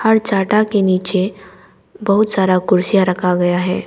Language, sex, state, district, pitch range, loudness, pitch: Hindi, female, Arunachal Pradesh, Papum Pare, 185-205 Hz, -15 LUFS, 190 Hz